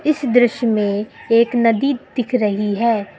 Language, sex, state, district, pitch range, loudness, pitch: Hindi, female, Uttar Pradesh, Lucknow, 210-245 Hz, -17 LUFS, 235 Hz